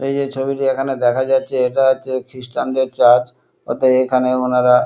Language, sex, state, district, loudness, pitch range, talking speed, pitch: Bengali, male, West Bengal, Kolkata, -17 LUFS, 125-135 Hz, 175 wpm, 130 Hz